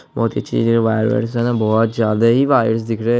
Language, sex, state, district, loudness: Hindi, female, Bihar, Araria, -16 LUFS